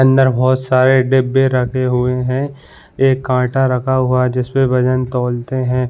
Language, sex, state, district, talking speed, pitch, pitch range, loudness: Hindi, male, Jharkhand, Jamtara, 175 wpm, 130 Hz, 125-130 Hz, -15 LUFS